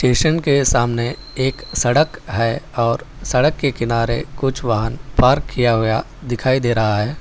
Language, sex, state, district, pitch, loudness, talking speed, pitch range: Hindi, male, Telangana, Hyderabad, 125 Hz, -18 LUFS, 160 wpm, 115-140 Hz